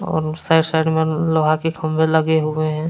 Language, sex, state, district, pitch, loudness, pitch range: Hindi, male, Jharkhand, Deoghar, 160 Hz, -18 LUFS, 155-160 Hz